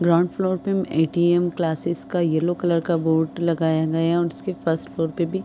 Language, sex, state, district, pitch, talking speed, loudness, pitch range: Hindi, female, Uttar Pradesh, Deoria, 170 Hz, 200 wpm, -22 LUFS, 165-175 Hz